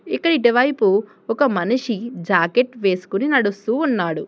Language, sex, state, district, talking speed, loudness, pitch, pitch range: Telugu, female, Telangana, Hyderabad, 125 wpm, -19 LUFS, 225 Hz, 195-250 Hz